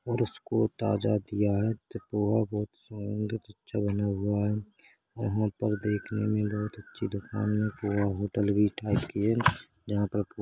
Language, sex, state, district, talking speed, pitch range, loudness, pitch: Hindi, male, Chhattisgarh, Korba, 145 wpm, 105-110 Hz, -30 LUFS, 105 Hz